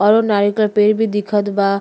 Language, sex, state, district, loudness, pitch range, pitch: Bhojpuri, female, Uttar Pradesh, Deoria, -16 LUFS, 205-215 Hz, 205 Hz